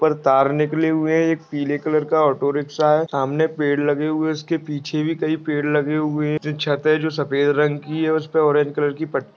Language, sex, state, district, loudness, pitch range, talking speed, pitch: Hindi, male, Maharashtra, Pune, -20 LUFS, 145-155 Hz, 230 wpm, 150 Hz